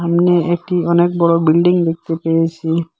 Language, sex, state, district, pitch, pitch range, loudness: Bengali, male, Assam, Hailakandi, 170 Hz, 165-175 Hz, -15 LUFS